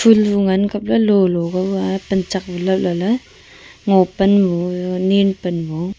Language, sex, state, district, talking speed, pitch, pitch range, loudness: Wancho, female, Arunachal Pradesh, Longding, 180 wpm, 190 Hz, 180-200 Hz, -17 LUFS